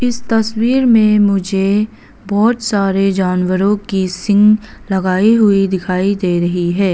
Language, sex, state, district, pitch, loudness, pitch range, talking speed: Hindi, female, Arunachal Pradesh, Papum Pare, 200 Hz, -14 LUFS, 190-215 Hz, 130 wpm